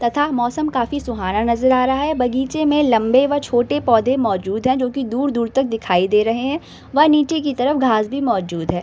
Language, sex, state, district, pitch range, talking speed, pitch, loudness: Hindi, female, Bihar, Samastipur, 230-285 Hz, 220 wpm, 255 Hz, -18 LUFS